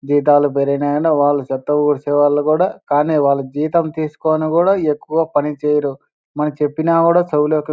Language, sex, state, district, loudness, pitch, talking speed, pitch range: Telugu, male, Andhra Pradesh, Anantapur, -16 LUFS, 150 Hz, 145 wpm, 145-155 Hz